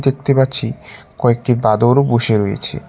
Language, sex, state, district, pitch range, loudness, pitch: Bengali, male, West Bengal, Cooch Behar, 115-135 Hz, -15 LUFS, 120 Hz